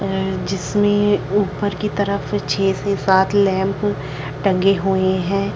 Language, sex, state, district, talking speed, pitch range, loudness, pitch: Hindi, female, Chhattisgarh, Bilaspur, 140 wpm, 190-205 Hz, -19 LUFS, 195 Hz